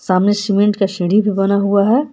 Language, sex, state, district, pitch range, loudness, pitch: Hindi, female, Jharkhand, Palamu, 195-210 Hz, -15 LUFS, 200 Hz